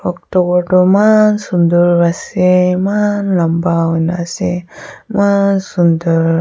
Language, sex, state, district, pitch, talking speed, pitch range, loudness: Nagamese, female, Nagaland, Kohima, 180 Hz, 105 wpm, 170-200 Hz, -13 LUFS